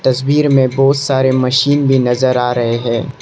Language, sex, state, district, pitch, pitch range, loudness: Hindi, male, Arunachal Pradesh, Lower Dibang Valley, 130 Hz, 125-140 Hz, -13 LUFS